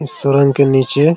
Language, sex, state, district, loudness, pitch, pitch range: Hindi, male, Jharkhand, Jamtara, -13 LUFS, 140 Hz, 140-150 Hz